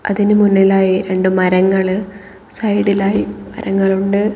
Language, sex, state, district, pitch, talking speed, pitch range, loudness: Malayalam, female, Kerala, Kozhikode, 195 Hz, 85 wpm, 185-200 Hz, -14 LUFS